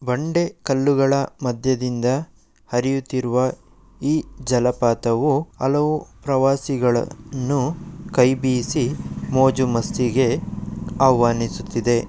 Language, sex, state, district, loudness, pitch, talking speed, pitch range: Kannada, male, Karnataka, Mysore, -21 LUFS, 130 Hz, 55 wpm, 120-140 Hz